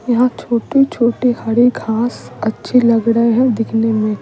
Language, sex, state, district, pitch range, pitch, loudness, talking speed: Hindi, female, Bihar, Patna, 225-245 Hz, 235 Hz, -15 LUFS, 140 wpm